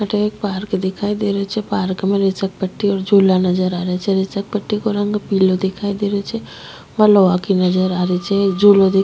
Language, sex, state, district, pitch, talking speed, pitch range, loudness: Rajasthani, female, Rajasthan, Nagaur, 195 Hz, 240 wpm, 190-205 Hz, -17 LUFS